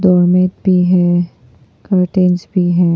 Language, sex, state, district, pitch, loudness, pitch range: Hindi, female, Arunachal Pradesh, Papum Pare, 180 Hz, -13 LUFS, 175-185 Hz